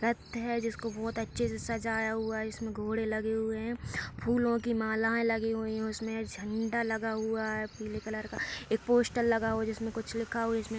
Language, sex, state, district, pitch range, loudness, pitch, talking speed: Hindi, female, Uttar Pradesh, Hamirpur, 220-230 Hz, -33 LUFS, 225 Hz, 205 wpm